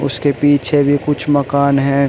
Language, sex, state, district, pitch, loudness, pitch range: Hindi, male, Uttar Pradesh, Shamli, 145 Hz, -14 LUFS, 140-145 Hz